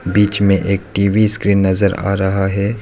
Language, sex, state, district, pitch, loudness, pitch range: Hindi, male, Arunachal Pradesh, Lower Dibang Valley, 100 Hz, -15 LUFS, 95-100 Hz